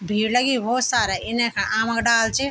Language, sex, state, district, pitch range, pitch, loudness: Garhwali, female, Uttarakhand, Tehri Garhwal, 220-245 Hz, 235 Hz, -20 LUFS